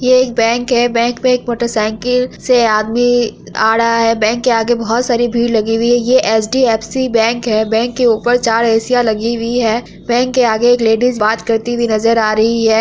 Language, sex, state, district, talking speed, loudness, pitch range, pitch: Hindi, female, Bihar, Araria, 225 wpm, -13 LUFS, 225-245 Hz, 235 Hz